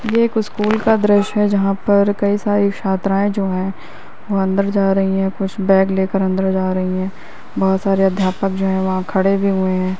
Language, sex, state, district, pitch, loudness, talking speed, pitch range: Hindi, male, Uttar Pradesh, Hamirpur, 195 Hz, -17 LUFS, 210 wpm, 190-200 Hz